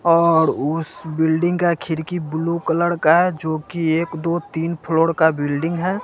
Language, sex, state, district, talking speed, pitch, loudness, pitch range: Hindi, male, Bihar, West Champaran, 180 wpm, 165 Hz, -19 LUFS, 160-170 Hz